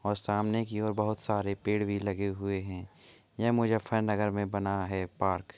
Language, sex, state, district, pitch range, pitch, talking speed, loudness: Hindi, male, Uttar Pradesh, Muzaffarnagar, 100-110 Hz, 105 Hz, 205 wpm, -31 LUFS